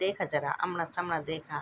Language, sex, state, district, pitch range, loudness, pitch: Garhwali, female, Uttarakhand, Tehri Garhwal, 155-175 Hz, -32 LUFS, 165 Hz